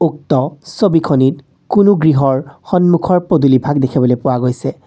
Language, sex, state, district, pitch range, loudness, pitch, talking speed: Assamese, male, Assam, Kamrup Metropolitan, 130-175 Hz, -13 LUFS, 145 Hz, 110 wpm